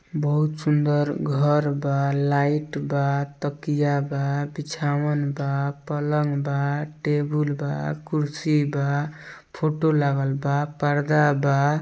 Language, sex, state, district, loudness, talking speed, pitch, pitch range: Bhojpuri, male, Bihar, East Champaran, -24 LUFS, 105 wpm, 145 Hz, 140-150 Hz